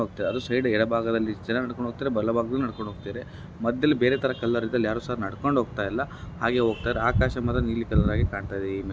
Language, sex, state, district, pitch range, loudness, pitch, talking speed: Kannada, male, Karnataka, Bellary, 105-125 Hz, -26 LUFS, 115 Hz, 210 wpm